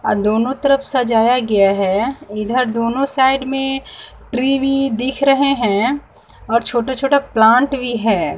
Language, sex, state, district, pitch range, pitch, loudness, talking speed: Hindi, female, Bihar, West Champaran, 225-275 Hz, 255 Hz, -16 LUFS, 150 wpm